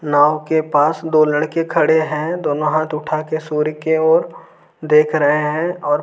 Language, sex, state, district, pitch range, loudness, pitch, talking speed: Hindi, male, Jharkhand, Deoghar, 150-160 Hz, -17 LUFS, 155 Hz, 180 wpm